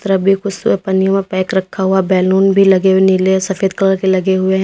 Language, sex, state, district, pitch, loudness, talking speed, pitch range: Hindi, female, Uttar Pradesh, Lalitpur, 190 Hz, -13 LUFS, 260 wpm, 190-195 Hz